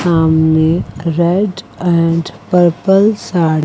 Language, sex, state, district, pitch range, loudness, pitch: Hindi, female, Chandigarh, Chandigarh, 160-180 Hz, -13 LUFS, 170 Hz